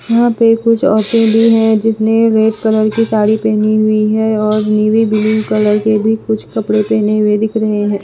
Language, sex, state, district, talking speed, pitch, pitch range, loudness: Hindi, female, Bihar, West Champaran, 200 wpm, 220 Hz, 215-225 Hz, -12 LUFS